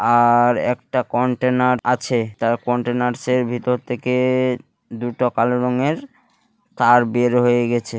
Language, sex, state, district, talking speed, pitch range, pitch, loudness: Bengali, male, West Bengal, Malda, 115 wpm, 120-125 Hz, 125 Hz, -19 LUFS